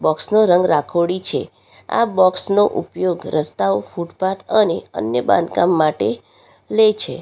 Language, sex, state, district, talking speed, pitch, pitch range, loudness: Gujarati, female, Gujarat, Valsad, 140 wpm, 180 Hz, 155-205 Hz, -18 LUFS